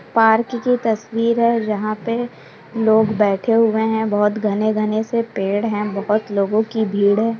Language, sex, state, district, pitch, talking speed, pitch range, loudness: Hindi, female, Bihar, Sitamarhi, 220 Hz, 170 wpm, 210-230 Hz, -18 LUFS